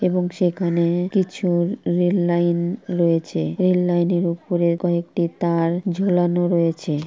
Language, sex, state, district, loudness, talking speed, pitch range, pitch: Bengali, female, West Bengal, Purulia, -20 LUFS, 110 wpm, 170-180 Hz, 175 Hz